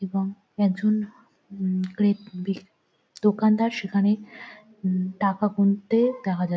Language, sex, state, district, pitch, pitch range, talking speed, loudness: Bengali, female, West Bengal, Jhargram, 200 Hz, 195-215 Hz, 90 wpm, -25 LUFS